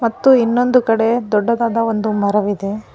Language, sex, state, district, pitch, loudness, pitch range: Kannada, female, Karnataka, Bangalore, 225 Hz, -16 LUFS, 210-235 Hz